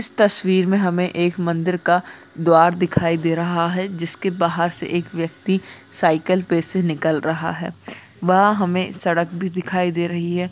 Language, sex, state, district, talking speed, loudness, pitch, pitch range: Hindi, female, Chhattisgarh, Sarguja, 175 wpm, -19 LUFS, 175 Hz, 170-185 Hz